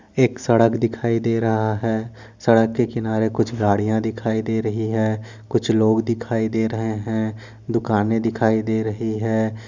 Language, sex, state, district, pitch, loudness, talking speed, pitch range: Hindi, male, Goa, North and South Goa, 110 Hz, -21 LUFS, 160 wpm, 110-115 Hz